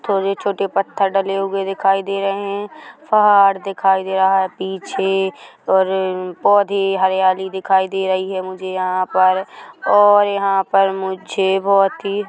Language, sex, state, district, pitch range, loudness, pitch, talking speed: Hindi, male, Chhattisgarh, Rajnandgaon, 190-195 Hz, -17 LUFS, 195 Hz, 150 wpm